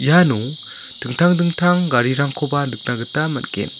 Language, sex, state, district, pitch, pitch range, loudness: Garo, male, Meghalaya, South Garo Hills, 145 Hz, 130-170 Hz, -18 LUFS